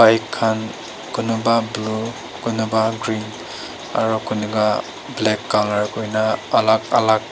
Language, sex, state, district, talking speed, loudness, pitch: Nagamese, female, Nagaland, Dimapur, 105 wpm, -20 LUFS, 110 Hz